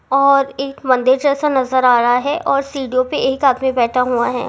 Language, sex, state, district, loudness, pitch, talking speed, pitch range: Hindi, female, Rajasthan, Churu, -15 LUFS, 260 Hz, 215 wpm, 250-275 Hz